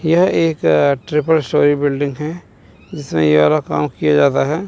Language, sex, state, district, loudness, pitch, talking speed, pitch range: Hindi, male, Chandigarh, Chandigarh, -15 LUFS, 150 Hz, 165 wpm, 140-160 Hz